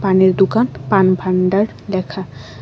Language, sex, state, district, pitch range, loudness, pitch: Bengali, female, Tripura, West Tripura, 185-195 Hz, -16 LUFS, 190 Hz